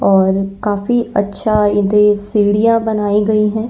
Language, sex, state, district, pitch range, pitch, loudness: Hindi, female, Uttar Pradesh, Lalitpur, 205-215 Hz, 210 Hz, -14 LUFS